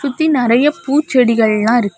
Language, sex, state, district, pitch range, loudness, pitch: Tamil, female, Tamil Nadu, Kanyakumari, 230-290 Hz, -13 LUFS, 250 Hz